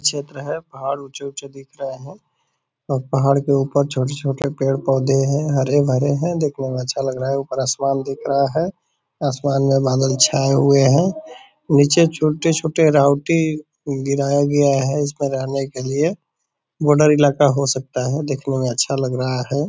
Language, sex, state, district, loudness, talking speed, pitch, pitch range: Hindi, male, Bihar, Purnia, -18 LUFS, 170 wpm, 140 Hz, 135-145 Hz